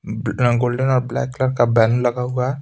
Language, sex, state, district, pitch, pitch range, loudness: Hindi, male, Bihar, Patna, 125 Hz, 120-130 Hz, -19 LUFS